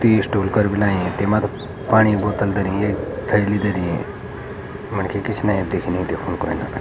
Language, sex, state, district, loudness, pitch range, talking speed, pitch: Garhwali, male, Uttarakhand, Uttarkashi, -20 LUFS, 100-105 Hz, 140 wpm, 105 Hz